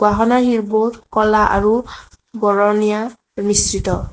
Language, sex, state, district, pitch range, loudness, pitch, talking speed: Assamese, female, Assam, Sonitpur, 210-230 Hz, -16 LUFS, 215 Hz, 85 wpm